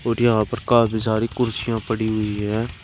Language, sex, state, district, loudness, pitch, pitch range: Hindi, male, Uttar Pradesh, Shamli, -21 LUFS, 110 Hz, 110-115 Hz